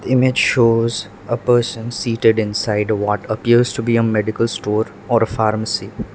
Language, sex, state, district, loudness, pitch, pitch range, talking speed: English, male, Sikkim, Gangtok, -17 LUFS, 115 Hz, 105-120 Hz, 175 wpm